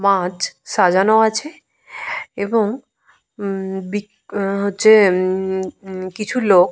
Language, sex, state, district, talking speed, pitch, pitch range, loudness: Bengali, female, Jharkhand, Jamtara, 105 wpm, 200 Hz, 190-220 Hz, -18 LUFS